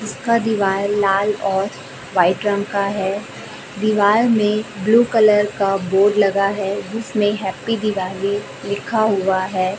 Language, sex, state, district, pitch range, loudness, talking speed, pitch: Hindi, female, Chhattisgarh, Raipur, 195-215 Hz, -18 LUFS, 140 wpm, 205 Hz